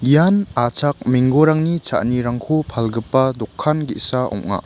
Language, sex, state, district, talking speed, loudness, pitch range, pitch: Garo, male, Meghalaya, West Garo Hills, 105 wpm, -18 LUFS, 120-155 Hz, 130 Hz